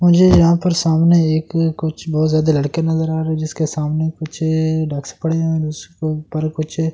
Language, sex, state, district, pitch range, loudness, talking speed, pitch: Hindi, male, Delhi, New Delhi, 155-165 Hz, -17 LUFS, 200 wpm, 160 Hz